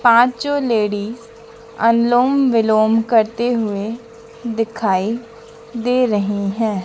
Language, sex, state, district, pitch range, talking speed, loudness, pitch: Hindi, female, Madhya Pradesh, Dhar, 220-235 Hz, 90 wpm, -17 LUFS, 230 Hz